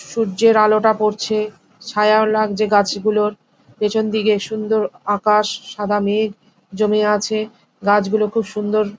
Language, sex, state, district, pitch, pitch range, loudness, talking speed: Bengali, female, West Bengal, Jhargram, 215 Hz, 210-215 Hz, -18 LUFS, 125 wpm